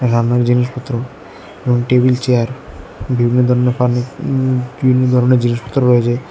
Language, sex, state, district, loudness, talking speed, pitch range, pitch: Bengali, male, Tripura, West Tripura, -15 LUFS, 125 wpm, 120-125 Hz, 125 Hz